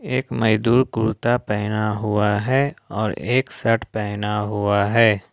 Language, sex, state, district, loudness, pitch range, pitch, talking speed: Hindi, male, Jharkhand, Ranchi, -20 LUFS, 105-120 Hz, 110 Hz, 135 wpm